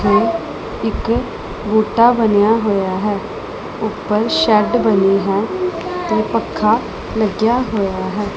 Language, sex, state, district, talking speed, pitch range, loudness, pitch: Punjabi, female, Punjab, Pathankot, 110 wpm, 205-225 Hz, -17 LUFS, 215 Hz